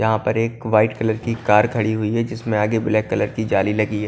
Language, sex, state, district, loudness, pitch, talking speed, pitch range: Hindi, male, Punjab, Kapurthala, -20 LUFS, 110 Hz, 250 wpm, 105-115 Hz